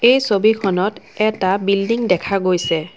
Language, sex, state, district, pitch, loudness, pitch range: Assamese, female, Assam, Kamrup Metropolitan, 200 Hz, -17 LUFS, 185-215 Hz